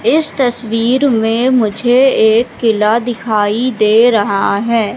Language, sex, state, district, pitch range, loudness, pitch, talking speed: Hindi, female, Madhya Pradesh, Katni, 215-245 Hz, -12 LUFS, 230 Hz, 120 wpm